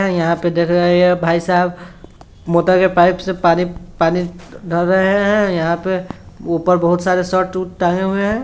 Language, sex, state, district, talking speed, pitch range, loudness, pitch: Hindi, male, Bihar, Sitamarhi, 185 wpm, 175-185 Hz, -16 LUFS, 180 Hz